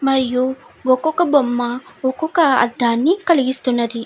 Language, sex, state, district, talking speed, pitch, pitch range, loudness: Telugu, female, Andhra Pradesh, Chittoor, 90 wpm, 260 Hz, 245-295 Hz, -17 LUFS